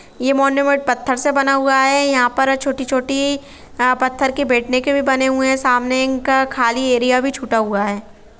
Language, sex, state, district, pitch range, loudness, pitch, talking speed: Hindi, female, Jharkhand, Sahebganj, 250-275 Hz, -16 LUFS, 265 Hz, 195 wpm